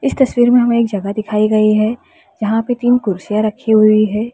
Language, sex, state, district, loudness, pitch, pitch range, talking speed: Hindi, female, Uttar Pradesh, Lalitpur, -14 LUFS, 215 Hz, 215-240 Hz, 220 wpm